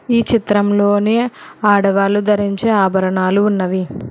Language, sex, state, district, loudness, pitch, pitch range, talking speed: Telugu, female, Telangana, Hyderabad, -15 LUFS, 205 Hz, 195-215 Hz, 85 wpm